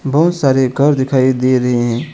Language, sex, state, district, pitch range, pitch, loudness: Hindi, male, West Bengal, Alipurduar, 130-145 Hz, 130 Hz, -14 LUFS